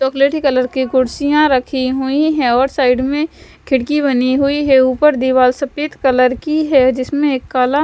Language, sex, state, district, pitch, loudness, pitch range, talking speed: Hindi, male, Punjab, Fazilka, 265 Hz, -14 LUFS, 255-290 Hz, 175 wpm